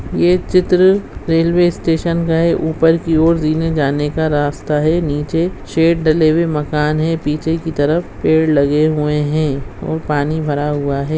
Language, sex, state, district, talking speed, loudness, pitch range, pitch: Hindi, female, Bihar, Madhepura, 170 wpm, -15 LUFS, 150-165 Hz, 160 Hz